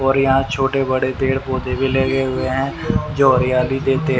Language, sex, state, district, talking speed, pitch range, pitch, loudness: Hindi, male, Haryana, Rohtak, 185 wpm, 130-135 Hz, 135 Hz, -18 LUFS